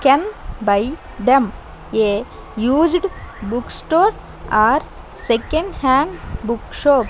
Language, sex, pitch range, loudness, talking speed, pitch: English, female, 225-315 Hz, -18 LUFS, 100 wpm, 260 Hz